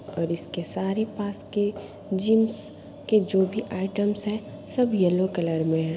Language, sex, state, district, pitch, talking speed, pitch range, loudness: Hindi, female, Bihar, East Champaran, 200 Hz, 160 wpm, 175-210 Hz, -26 LUFS